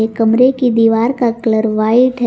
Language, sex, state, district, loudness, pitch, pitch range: Hindi, female, Jharkhand, Garhwa, -13 LUFS, 230 Hz, 220-245 Hz